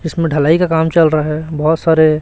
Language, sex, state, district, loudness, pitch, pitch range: Hindi, male, Chhattisgarh, Raipur, -13 LUFS, 160 Hz, 155-165 Hz